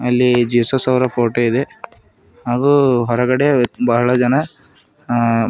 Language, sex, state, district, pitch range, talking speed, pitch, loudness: Kannada, male, Karnataka, Bidar, 120-130 Hz, 110 wpm, 125 Hz, -15 LUFS